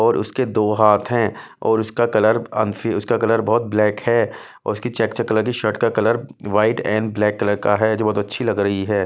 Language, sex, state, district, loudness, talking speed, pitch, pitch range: Hindi, male, Bihar, West Champaran, -19 LUFS, 225 wpm, 110 Hz, 105-115 Hz